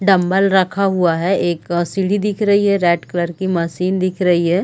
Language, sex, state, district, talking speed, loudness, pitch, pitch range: Hindi, female, Chhattisgarh, Raigarh, 205 wpm, -16 LUFS, 185 Hz, 175-195 Hz